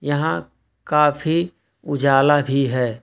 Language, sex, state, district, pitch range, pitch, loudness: Hindi, male, Jharkhand, Ranchi, 135-150 Hz, 145 Hz, -19 LUFS